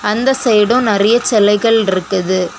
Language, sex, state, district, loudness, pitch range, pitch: Tamil, female, Tamil Nadu, Kanyakumari, -13 LUFS, 200-235 Hz, 210 Hz